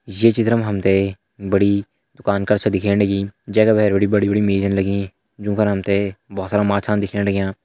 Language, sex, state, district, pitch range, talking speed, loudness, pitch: Hindi, male, Uttarakhand, Tehri Garhwal, 100-105 Hz, 195 wpm, -18 LUFS, 100 Hz